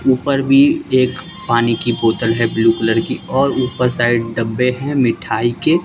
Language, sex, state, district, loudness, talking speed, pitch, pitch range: Hindi, male, Bihar, West Champaran, -16 LUFS, 175 wpm, 125 Hz, 115-135 Hz